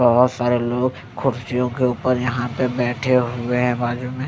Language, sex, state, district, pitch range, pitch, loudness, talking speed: Hindi, male, Bihar, Patna, 120-125 Hz, 125 Hz, -20 LUFS, 180 wpm